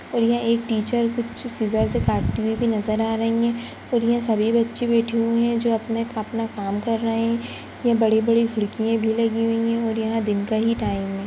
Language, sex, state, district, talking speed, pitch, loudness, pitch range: Hindi, female, Uttarakhand, Tehri Garhwal, 235 wpm, 230 Hz, -22 LUFS, 220-235 Hz